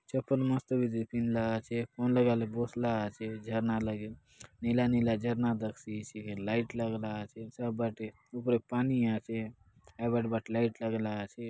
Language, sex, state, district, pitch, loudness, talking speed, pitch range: Halbi, male, Chhattisgarh, Bastar, 115 Hz, -33 LUFS, 145 wpm, 110-120 Hz